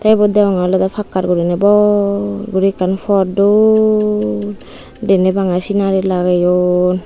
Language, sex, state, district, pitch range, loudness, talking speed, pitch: Chakma, female, Tripura, Unakoti, 180-205 Hz, -14 LUFS, 125 wpm, 195 Hz